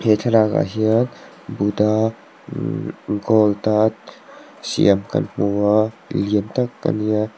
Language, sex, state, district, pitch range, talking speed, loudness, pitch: Mizo, male, Mizoram, Aizawl, 105-110 Hz, 140 wpm, -19 LUFS, 110 Hz